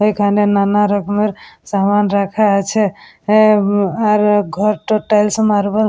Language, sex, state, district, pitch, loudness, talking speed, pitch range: Bengali, female, West Bengal, Purulia, 210 Hz, -14 LUFS, 130 wpm, 200-210 Hz